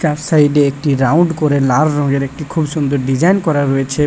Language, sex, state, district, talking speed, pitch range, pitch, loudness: Bengali, male, West Bengal, Paschim Medinipur, 205 wpm, 140-155 Hz, 145 Hz, -14 LUFS